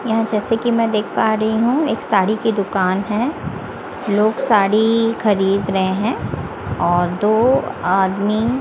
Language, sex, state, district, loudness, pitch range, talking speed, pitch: Hindi, female, Chhattisgarh, Raipur, -18 LUFS, 195-225 Hz, 145 wpm, 215 Hz